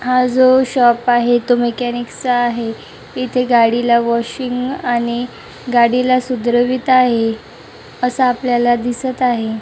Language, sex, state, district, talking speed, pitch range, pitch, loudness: Marathi, male, Maharashtra, Chandrapur, 120 wpm, 240-255 Hz, 245 Hz, -15 LUFS